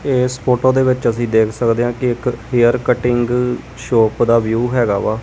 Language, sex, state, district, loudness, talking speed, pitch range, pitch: Punjabi, male, Punjab, Kapurthala, -16 LUFS, 195 wpm, 115-125 Hz, 120 Hz